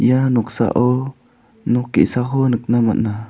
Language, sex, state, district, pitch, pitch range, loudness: Garo, male, Meghalaya, South Garo Hills, 125 Hz, 120-130 Hz, -17 LUFS